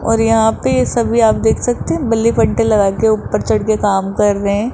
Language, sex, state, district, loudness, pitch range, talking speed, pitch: Hindi, female, Rajasthan, Jaipur, -14 LUFS, 205-225 Hz, 240 wpm, 220 Hz